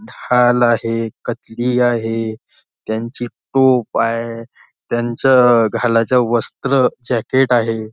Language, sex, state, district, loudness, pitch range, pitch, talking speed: Marathi, male, Maharashtra, Nagpur, -16 LUFS, 115-125 Hz, 120 Hz, 90 wpm